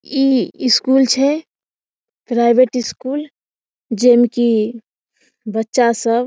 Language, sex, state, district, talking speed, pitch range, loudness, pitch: Maithili, female, Bihar, Samastipur, 105 wpm, 235-265 Hz, -15 LUFS, 245 Hz